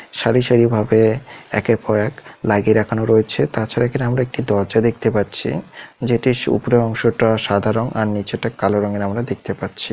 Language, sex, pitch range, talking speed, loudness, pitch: Odia, male, 105-120 Hz, 185 wpm, -18 LUFS, 115 Hz